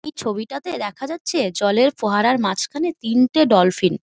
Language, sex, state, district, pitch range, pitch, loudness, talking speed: Bengali, female, West Bengal, Jhargram, 210-305 Hz, 250 Hz, -19 LUFS, 150 wpm